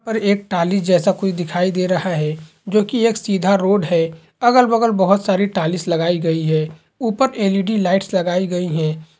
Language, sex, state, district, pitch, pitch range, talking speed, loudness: Hindi, male, Bihar, Purnia, 185 Hz, 170-205 Hz, 190 wpm, -18 LUFS